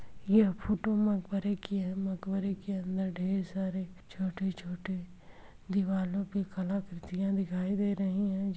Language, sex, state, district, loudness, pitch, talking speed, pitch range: Hindi, female, Uttar Pradesh, Etah, -33 LUFS, 190 Hz, 145 wpm, 185-195 Hz